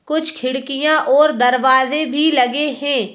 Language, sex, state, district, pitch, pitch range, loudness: Hindi, female, Madhya Pradesh, Bhopal, 280 Hz, 260-305 Hz, -15 LUFS